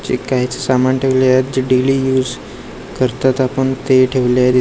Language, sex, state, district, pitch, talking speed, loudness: Marathi, male, Maharashtra, Gondia, 130 Hz, 180 wpm, -15 LUFS